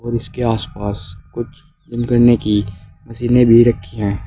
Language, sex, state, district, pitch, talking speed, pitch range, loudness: Hindi, male, Uttar Pradesh, Saharanpur, 115 Hz, 155 wpm, 100-120 Hz, -15 LUFS